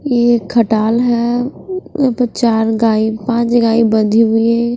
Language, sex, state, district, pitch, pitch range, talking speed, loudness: Hindi, female, Punjab, Pathankot, 235 Hz, 225-240 Hz, 150 wpm, -14 LUFS